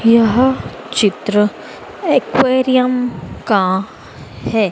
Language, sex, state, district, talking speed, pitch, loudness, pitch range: Hindi, female, Madhya Pradesh, Dhar, 65 wpm, 220 Hz, -15 LUFS, 190-255 Hz